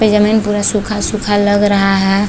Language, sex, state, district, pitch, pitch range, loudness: Hindi, female, Chhattisgarh, Balrampur, 205 Hz, 200-210 Hz, -13 LUFS